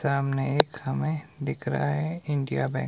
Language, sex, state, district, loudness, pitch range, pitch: Hindi, male, Himachal Pradesh, Shimla, -27 LUFS, 130-150 Hz, 140 Hz